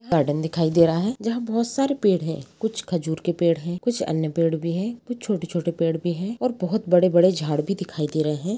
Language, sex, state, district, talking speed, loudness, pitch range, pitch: Hindi, female, Chhattisgarh, Balrampur, 250 wpm, -23 LUFS, 165-220 Hz, 175 Hz